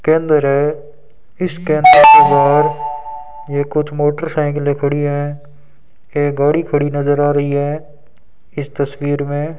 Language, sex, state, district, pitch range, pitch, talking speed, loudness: Hindi, male, Rajasthan, Bikaner, 145-150 Hz, 145 Hz, 140 wpm, -14 LUFS